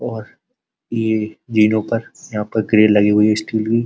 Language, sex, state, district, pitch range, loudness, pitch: Hindi, male, Uttar Pradesh, Muzaffarnagar, 105-115 Hz, -17 LUFS, 110 Hz